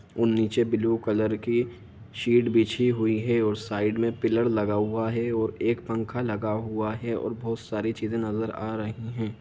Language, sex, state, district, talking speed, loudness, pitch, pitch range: Hindi, male, Jharkhand, Sahebganj, 190 wpm, -26 LUFS, 110 Hz, 110-115 Hz